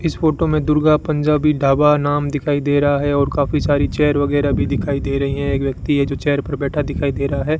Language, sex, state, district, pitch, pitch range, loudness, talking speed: Hindi, male, Rajasthan, Bikaner, 145 Hz, 140-150 Hz, -17 LUFS, 250 wpm